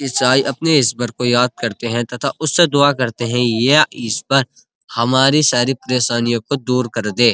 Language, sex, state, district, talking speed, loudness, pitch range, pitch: Hindi, male, Uttar Pradesh, Muzaffarnagar, 170 wpm, -16 LUFS, 120-135 Hz, 125 Hz